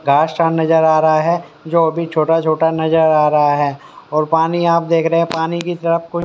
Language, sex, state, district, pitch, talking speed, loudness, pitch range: Hindi, male, Haryana, Rohtak, 160 Hz, 200 wpm, -15 LUFS, 155-170 Hz